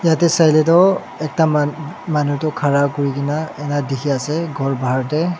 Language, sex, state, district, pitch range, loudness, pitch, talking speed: Nagamese, male, Nagaland, Dimapur, 140-160 Hz, -17 LUFS, 150 Hz, 165 wpm